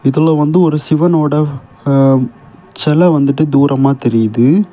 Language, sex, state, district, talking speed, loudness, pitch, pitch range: Tamil, male, Tamil Nadu, Kanyakumari, 115 wpm, -12 LUFS, 145 Hz, 135-155 Hz